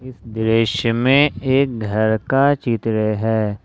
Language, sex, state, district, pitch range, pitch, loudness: Hindi, male, Jharkhand, Ranchi, 110-130 Hz, 115 Hz, -18 LUFS